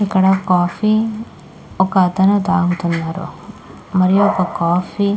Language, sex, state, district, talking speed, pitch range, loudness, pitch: Telugu, female, Andhra Pradesh, Krishna, 105 wpm, 180-200 Hz, -16 LUFS, 190 Hz